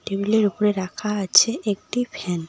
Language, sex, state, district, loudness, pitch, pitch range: Bengali, female, West Bengal, Cooch Behar, -21 LUFS, 205 Hz, 190-220 Hz